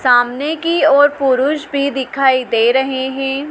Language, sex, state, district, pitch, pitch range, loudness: Hindi, female, Madhya Pradesh, Dhar, 270 Hz, 260-290 Hz, -15 LUFS